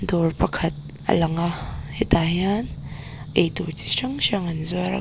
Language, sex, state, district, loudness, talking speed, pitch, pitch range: Mizo, female, Mizoram, Aizawl, -23 LUFS, 165 wpm, 165 Hz, 145-180 Hz